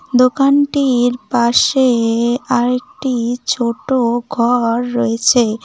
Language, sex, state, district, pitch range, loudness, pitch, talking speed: Bengali, female, West Bengal, Cooch Behar, 235-255 Hz, -15 LUFS, 245 Hz, 75 wpm